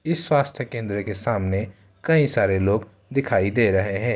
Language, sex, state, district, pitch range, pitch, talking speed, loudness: Hindi, male, Uttar Pradesh, Ghazipur, 100-135 Hz, 110 Hz, 175 wpm, -22 LUFS